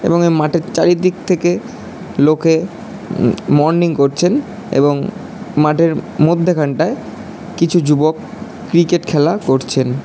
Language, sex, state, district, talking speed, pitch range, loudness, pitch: Bengali, male, West Bengal, Jalpaiguri, 105 wpm, 150-180 Hz, -15 LUFS, 170 Hz